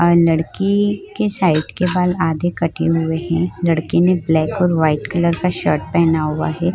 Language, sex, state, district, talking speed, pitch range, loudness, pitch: Hindi, female, Uttar Pradesh, Muzaffarnagar, 185 wpm, 160-180 Hz, -17 LUFS, 170 Hz